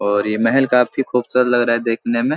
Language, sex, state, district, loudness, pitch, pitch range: Hindi, male, Bihar, Supaul, -17 LUFS, 120 Hz, 115-125 Hz